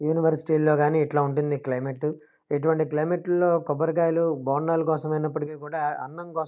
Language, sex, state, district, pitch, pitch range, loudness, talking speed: Telugu, male, Andhra Pradesh, Krishna, 155 Hz, 150-165 Hz, -25 LUFS, 165 wpm